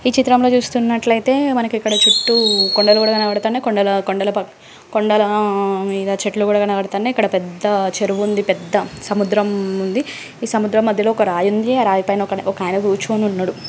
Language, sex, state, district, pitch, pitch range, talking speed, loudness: Telugu, female, Andhra Pradesh, Srikakulam, 210 Hz, 195-220 Hz, 155 wpm, -16 LUFS